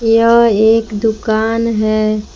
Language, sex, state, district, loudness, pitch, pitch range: Hindi, female, Jharkhand, Palamu, -13 LUFS, 225 Hz, 215-225 Hz